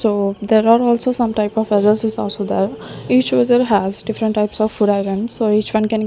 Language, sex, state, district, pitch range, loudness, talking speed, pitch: English, female, Maharashtra, Gondia, 205-225 Hz, -17 LUFS, 225 wpm, 215 Hz